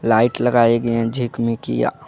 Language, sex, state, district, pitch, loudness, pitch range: Hindi, male, Jharkhand, Deoghar, 115 Hz, -18 LUFS, 115-120 Hz